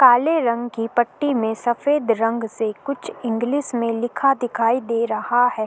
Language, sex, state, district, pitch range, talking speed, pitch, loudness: Hindi, female, Goa, North and South Goa, 230-260 Hz, 170 wpm, 240 Hz, -21 LUFS